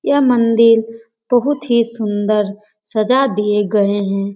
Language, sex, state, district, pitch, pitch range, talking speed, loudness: Hindi, female, Bihar, Jamui, 225 Hz, 210-235 Hz, 125 wpm, -15 LUFS